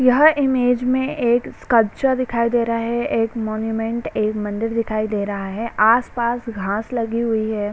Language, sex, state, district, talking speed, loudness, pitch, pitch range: Hindi, female, Bihar, Saran, 170 wpm, -20 LUFS, 230 Hz, 215-245 Hz